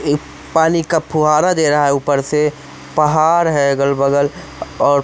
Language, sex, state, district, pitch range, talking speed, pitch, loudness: Hindi, male, Madhya Pradesh, Umaria, 140-155 Hz, 155 wpm, 150 Hz, -15 LUFS